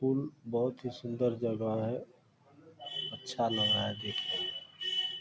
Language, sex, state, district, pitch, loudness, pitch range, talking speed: Hindi, male, Bihar, Purnia, 125 Hz, -33 LUFS, 115-140 Hz, 140 wpm